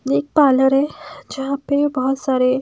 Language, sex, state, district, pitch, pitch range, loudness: Hindi, female, Himachal Pradesh, Shimla, 275 Hz, 260-285 Hz, -18 LUFS